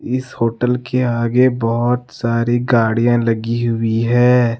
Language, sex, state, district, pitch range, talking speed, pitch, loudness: Hindi, male, Jharkhand, Deoghar, 115-125 Hz, 130 wpm, 120 Hz, -16 LUFS